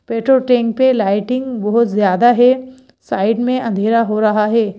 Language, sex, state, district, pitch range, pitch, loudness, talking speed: Hindi, female, Madhya Pradesh, Bhopal, 215-250 Hz, 230 Hz, -15 LUFS, 165 wpm